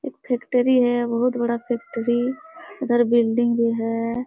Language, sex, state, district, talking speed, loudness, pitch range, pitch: Hindi, female, Bihar, Supaul, 140 wpm, -21 LUFS, 235-250 Hz, 240 Hz